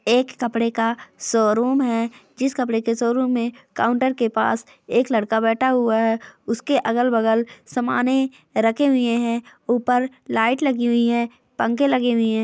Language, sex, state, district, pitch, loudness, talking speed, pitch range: Hindi, female, Bihar, East Champaran, 235 Hz, -21 LUFS, 165 wpm, 230-255 Hz